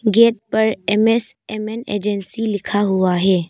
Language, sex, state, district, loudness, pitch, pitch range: Hindi, female, Arunachal Pradesh, Papum Pare, -18 LUFS, 215 Hz, 200-225 Hz